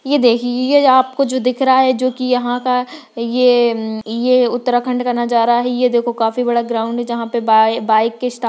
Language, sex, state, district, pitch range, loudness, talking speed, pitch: Hindi, female, Uttarakhand, Tehri Garhwal, 235-255 Hz, -15 LUFS, 220 wpm, 245 Hz